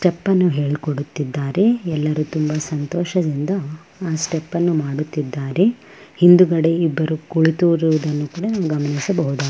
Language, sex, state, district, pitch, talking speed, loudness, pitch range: Kannada, female, Karnataka, Bellary, 160 Hz, 90 wpm, -19 LUFS, 150-175 Hz